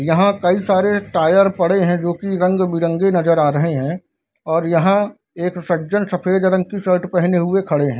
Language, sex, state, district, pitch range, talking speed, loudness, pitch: Hindi, male, Bihar, Darbhanga, 170-195 Hz, 195 wpm, -17 LUFS, 180 Hz